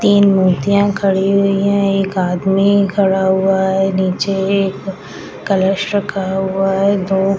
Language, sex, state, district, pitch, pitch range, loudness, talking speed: Hindi, female, Bihar, Madhepura, 195 Hz, 190-200 Hz, -15 LUFS, 145 wpm